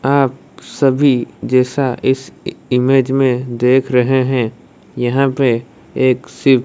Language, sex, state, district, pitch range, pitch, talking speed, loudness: Hindi, female, Odisha, Malkangiri, 125-135 Hz, 130 Hz, 125 wpm, -15 LUFS